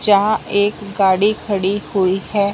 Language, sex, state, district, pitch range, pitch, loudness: Hindi, male, Punjab, Fazilka, 195-210 Hz, 200 Hz, -17 LUFS